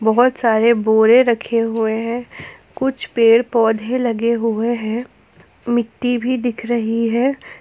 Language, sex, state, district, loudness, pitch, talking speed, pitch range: Hindi, female, Jharkhand, Ranchi, -17 LUFS, 235 Hz, 135 wpm, 225-245 Hz